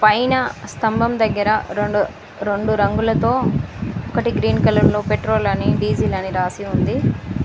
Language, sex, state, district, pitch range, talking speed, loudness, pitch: Telugu, female, Telangana, Mahabubabad, 185-215 Hz, 120 wpm, -19 LUFS, 205 Hz